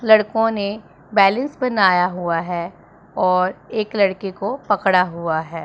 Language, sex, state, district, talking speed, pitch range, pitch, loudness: Hindi, female, Punjab, Pathankot, 140 wpm, 175-215 Hz, 190 Hz, -19 LUFS